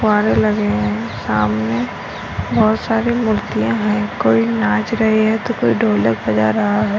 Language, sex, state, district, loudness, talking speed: Hindi, female, Rajasthan, Churu, -17 LUFS, 155 wpm